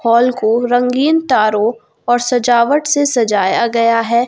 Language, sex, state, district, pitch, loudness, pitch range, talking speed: Hindi, female, Jharkhand, Garhwa, 240 Hz, -13 LUFS, 230-250 Hz, 140 wpm